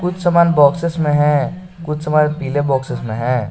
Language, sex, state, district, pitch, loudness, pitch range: Hindi, male, Jharkhand, Garhwa, 150 Hz, -16 LUFS, 140-170 Hz